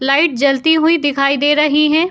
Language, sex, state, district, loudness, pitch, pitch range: Hindi, female, Uttar Pradesh, Jyotiba Phule Nagar, -13 LUFS, 295 Hz, 275-315 Hz